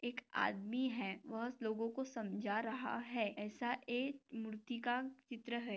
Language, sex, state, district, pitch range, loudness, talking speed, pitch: Hindi, female, Maharashtra, Nagpur, 220-250 Hz, -42 LUFS, 175 wpm, 240 Hz